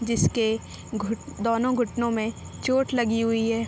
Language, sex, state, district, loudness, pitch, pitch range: Hindi, female, Bihar, Sitamarhi, -25 LUFS, 230 Hz, 225-240 Hz